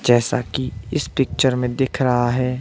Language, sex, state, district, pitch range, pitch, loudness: Hindi, male, Himachal Pradesh, Shimla, 120-130 Hz, 125 Hz, -20 LUFS